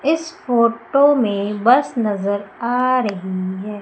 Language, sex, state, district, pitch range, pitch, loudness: Hindi, female, Madhya Pradesh, Umaria, 200-255 Hz, 235 Hz, -18 LUFS